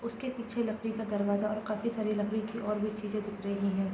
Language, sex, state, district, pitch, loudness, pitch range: Hindi, female, Bihar, Gopalganj, 215 Hz, -33 LUFS, 205-225 Hz